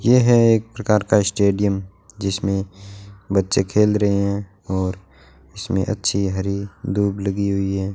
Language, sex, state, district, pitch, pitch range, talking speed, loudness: Hindi, male, Rajasthan, Bikaner, 100 Hz, 95-105 Hz, 145 wpm, -20 LUFS